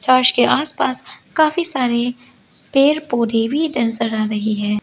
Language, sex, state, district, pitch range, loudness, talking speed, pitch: Hindi, female, Arunachal Pradesh, Lower Dibang Valley, 225-275 Hz, -17 LUFS, 150 wpm, 245 Hz